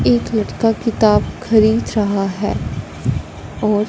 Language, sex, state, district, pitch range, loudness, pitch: Hindi, female, Punjab, Fazilka, 200-220 Hz, -17 LUFS, 215 Hz